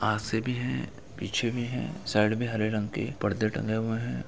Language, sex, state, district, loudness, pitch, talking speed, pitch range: Hindi, male, Uttar Pradesh, Etah, -30 LUFS, 110 Hz, 225 wpm, 105-120 Hz